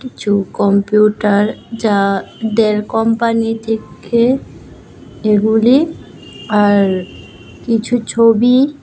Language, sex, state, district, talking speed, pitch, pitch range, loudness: Bengali, female, Tripura, West Tripura, 70 wpm, 215 Hz, 200-230 Hz, -14 LUFS